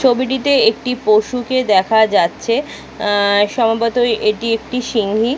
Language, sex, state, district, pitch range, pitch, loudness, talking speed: Bengali, female, West Bengal, Kolkata, 215-250 Hz, 230 Hz, -15 LUFS, 100 wpm